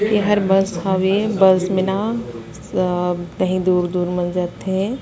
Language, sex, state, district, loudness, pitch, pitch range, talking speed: Surgujia, female, Chhattisgarh, Sarguja, -19 LUFS, 185 Hz, 180-195 Hz, 155 wpm